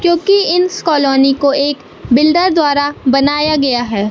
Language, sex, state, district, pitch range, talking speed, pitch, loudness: Hindi, male, Madhya Pradesh, Katni, 275-340 Hz, 160 wpm, 290 Hz, -12 LUFS